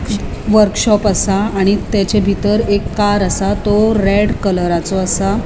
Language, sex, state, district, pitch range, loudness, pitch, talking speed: Konkani, female, Goa, North and South Goa, 195-210 Hz, -14 LUFS, 205 Hz, 130 wpm